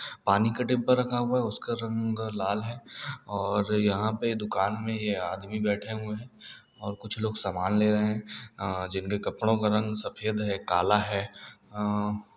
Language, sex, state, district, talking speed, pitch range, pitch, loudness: Hindi, male, Uttar Pradesh, Hamirpur, 185 wpm, 105-110 Hz, 105 Hz, -29 LUFS